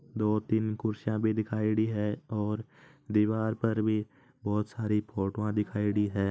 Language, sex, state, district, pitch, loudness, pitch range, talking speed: Marwari, male, Rajasthan, Nagaur, 110 Hz, -30 LUFS, 105-110 Hz, 140 wpm